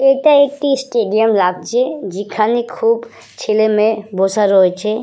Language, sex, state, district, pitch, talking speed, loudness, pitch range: Bengali, female, West Bengal, Purulia, 220 Hz, 120 wpm, -15 LUFS, 210-250 Hz